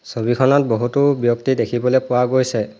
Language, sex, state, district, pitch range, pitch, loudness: Assamese, male, Assam, Hailakandi, 120-130 Hz, 125 Hz, -17 LUFS